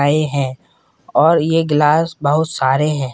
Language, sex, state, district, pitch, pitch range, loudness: Hindi, male, Rajasthan, Nagaur, 150 Hz, 140-160 Hz, -16 LUFS